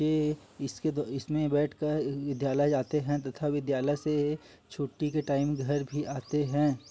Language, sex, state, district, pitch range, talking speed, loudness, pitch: Hindi, male, Chhattisgarh, Kabirdham, 140-150 Hz, 165 wpm, -30 LUFS, 145 Hz